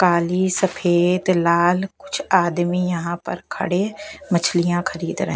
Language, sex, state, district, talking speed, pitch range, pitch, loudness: Hindi, female, Bihar, West Champaran, 135 wpm, 175-190 Hz, 180 Hz, -20 LUFS